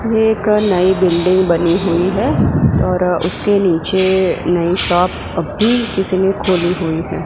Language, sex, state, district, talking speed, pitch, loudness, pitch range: Hindi, male, Gujarat, Gandhinagar, 150 wpm, 185 Hz, -15 LUFS, 175-195 Hz